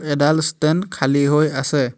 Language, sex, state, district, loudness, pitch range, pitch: Assamese, male, Assam, Hailakandi, -18 LUFS, 140-155 Hz, 145 Hz